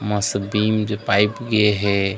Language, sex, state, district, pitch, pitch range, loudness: Chhattisgarhi, male, Chhattisgarh, Raigarh, 105 Hz, 100-105 Hz, -19 LUFS